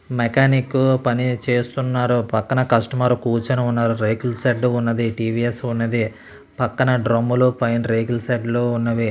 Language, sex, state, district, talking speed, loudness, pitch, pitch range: Telugu, male, Andhra Pradesh, Srikakulam, 125 wpm, -20 LUFS, 120 Hz, 115-125 Hz